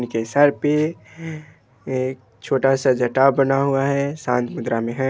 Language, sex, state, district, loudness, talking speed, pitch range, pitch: Hindi, male, Bihar, Muzaffarpur, -20 LUFS, 165 wpm, 125-145 Hz, 135 Hz